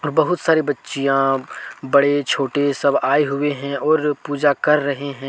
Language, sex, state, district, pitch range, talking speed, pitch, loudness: Hindi, male, Jharkhand, Deoghar, 140-145 Hz, 160 wpm, 145 Hz, -18 LUFS